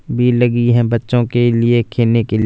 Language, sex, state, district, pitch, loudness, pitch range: Hindi, male, Punjab, Fazilka, 120 Hz, -14 LUFS, 115-120 Hz